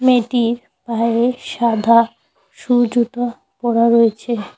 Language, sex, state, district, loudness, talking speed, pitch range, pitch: Bengali, female, West Bengal, Cooch Behar, -17 LUFS, 90 wpm, 230-245 Hz, 235 Hz